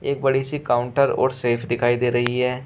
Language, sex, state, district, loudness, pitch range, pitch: Hindi, male, Uttar Pradesh, Shamli, -21 LUFS, 120-135 Hz, 125 Hz